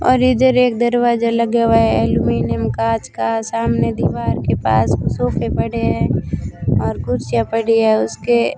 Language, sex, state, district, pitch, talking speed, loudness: Hindi, female, Rajasthan, Bikaner, 120 Hz, 155 wpm, -17 LUFS